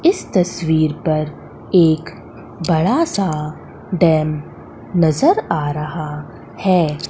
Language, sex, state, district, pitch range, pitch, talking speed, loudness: Hindi, female, Madhya Pradesh, Umaria, 155-180 Hz, 160 Hz, 95 wpm, -18 LUFS